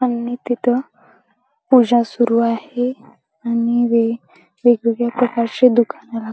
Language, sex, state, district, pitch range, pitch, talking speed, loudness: Marathi, female, Maharashtra, Chandrapur, 230-245 Hz, 240 Hz, 85 wpm, -17 LUFS